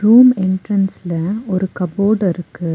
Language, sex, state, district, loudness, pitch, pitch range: Tamil, female, Tamil Nadu, Nilgiris, -16 LUFS, 190 Hz, 175-210 Hz